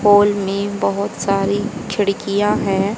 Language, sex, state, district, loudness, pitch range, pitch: Hindi, female, Haryana, Charkhi Dadri, -18 LUFS, 195-205 Hz, 200 Hz